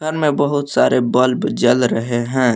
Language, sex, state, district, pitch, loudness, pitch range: Hindi, male, Jharkhand, Palamu, 125 Hz, -16 LUFS, 120-145 Hz